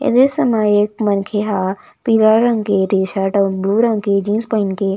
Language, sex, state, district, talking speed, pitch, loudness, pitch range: Chhattisgarhi, female, Chhattisgarh, Raigarh, 230 wpm, 205 Hz, -16 LUFS, 195-220 Hz